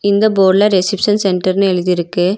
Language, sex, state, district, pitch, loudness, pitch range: Tamil, female, Tamil Nadu, Nilgiris, 190 Hz, -13 LUFS, 185-200 Hz